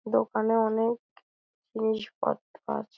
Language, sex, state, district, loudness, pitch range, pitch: Bengali, female, West Bengal, Dakshin Dinajpur, -29 LUFS, 220-225 Hz, 220 Hz